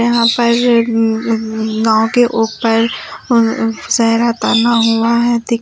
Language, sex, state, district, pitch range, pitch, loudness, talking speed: Hindi, female, Uttar Pradesh, Lucknow, 225-235 Hz, 230 Hz, -13 LUFS, 105 wpm